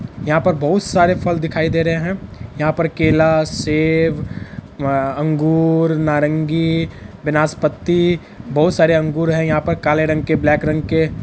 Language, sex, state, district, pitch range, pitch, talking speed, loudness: Hindi, male, Bihar, Araria, 150-165 Hz, 155 Hz, 150 wpm, -17 LUFS